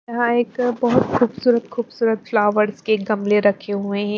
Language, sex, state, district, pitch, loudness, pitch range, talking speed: Hindi, female, Maharashtra, Mumbai Suburban, 225 Hz, -19 LUFS, 210-240 Hz, 160 wpm